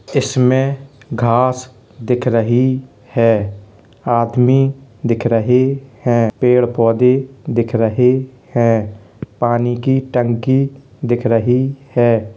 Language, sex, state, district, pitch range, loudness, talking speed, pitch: Hindi, male, Uttar Pradesh, Hamirpur, 115-130 Hz, -15 LUFS, 95 wpm, 125 Hz